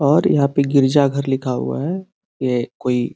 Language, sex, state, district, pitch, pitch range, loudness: Hindi, male, Uttar Pradesh, Gorakhpur, 140 Hz, 125-145 Hz, -18 LUFS